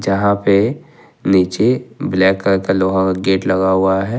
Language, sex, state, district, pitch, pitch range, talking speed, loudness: Hindi, male, Jharkhand, Ranchi, 95 Hz, 95-100 Hz, 170 wpm, -15 LUFS